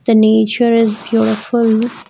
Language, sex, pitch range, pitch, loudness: English, female, 220-235 Hz, 225 Hz, -13 LUFS